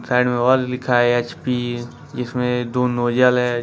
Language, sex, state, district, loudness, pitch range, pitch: Hindi, male, Jharkhand, Ranchi, -19 LUFS, 120-125 Hz, 125 Hz